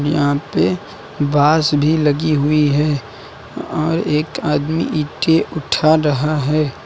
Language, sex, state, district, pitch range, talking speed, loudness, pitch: Hindi, male, Uttar Pradesh, Lucknow, 145-155 Hz, 120 wpm, -17 LUFS, 150 Hz